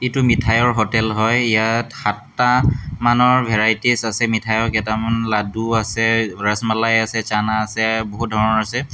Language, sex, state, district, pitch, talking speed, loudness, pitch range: Assamese, male, Assam, Hailakandi, 115 Hz, 135 wpm, -18 LUFS, 110-120 Hz